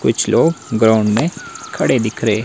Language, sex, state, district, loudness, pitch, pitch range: Hindi, male, Himachal Pradesh, Shimla, -15 LUFS, 110 Hz, 110-130 Hz